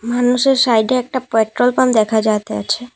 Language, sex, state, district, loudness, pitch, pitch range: Bengali, female, Assam, Kamrup Metropolitan, -15 LUFS, 245 Hz, 220-255 Hz